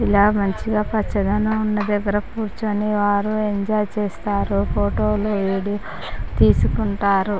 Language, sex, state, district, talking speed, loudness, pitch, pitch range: Telugu, female, Andhra Pradesh, Chittoor, 105 wpm, -20 LUFS, 205 Hz, 195-210 Hz